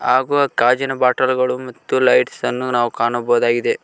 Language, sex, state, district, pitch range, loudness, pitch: Kannada, male, Karnataka, Koppal, 120-130 Hz, -17 LUFS, 125 Hz